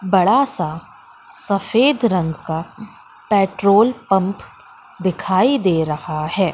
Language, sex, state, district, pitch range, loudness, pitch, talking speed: Hindi, female, Madhya Pradesh, Katni, 175-215 Hz, -18 LUFS, 190 Hz, 100 wpm